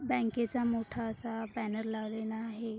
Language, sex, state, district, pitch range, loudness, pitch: Marathi, female, Maharashtra, Sindhudurg, 220-235 Hz, -35 LUFS, 225 Hz